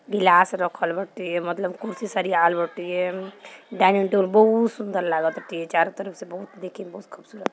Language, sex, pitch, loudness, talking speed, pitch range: Bhojpuri, female, 190 Hz, -22 LUFS, 160 wpm, 175-200 Hz